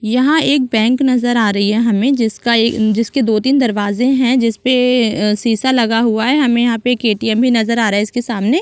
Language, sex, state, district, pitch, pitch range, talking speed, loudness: Hindi, female, Chhattisgarh, Rajnandgaon, 235 Hz, 225-250 Hz, 250 wpm, -14 LUFS